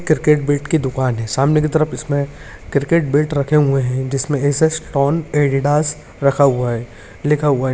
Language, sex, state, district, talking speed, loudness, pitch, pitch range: Hindi, male, Rajasthan, Nagaur, 185 wpm, -17 LUFS, 140 Hz, 130-150 Hz